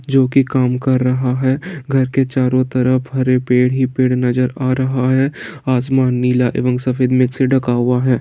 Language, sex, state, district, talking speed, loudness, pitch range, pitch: Hindi, male, Bihar, Saran, 205 wpm, -16 LUFS, 125-130 Hz, 130 Hz